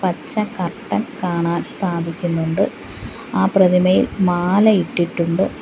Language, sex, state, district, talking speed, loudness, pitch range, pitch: Malayalam, female, Kerala, Kollam, 85 wpm, -18 LUFS, 170-195 Hz, 180 Hz